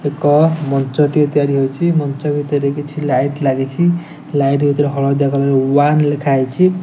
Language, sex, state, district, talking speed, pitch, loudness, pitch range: Odia, male, Odisha, Nuapada, 150 wpm, 145 Hz, -15 LUFS, 140-150 Hz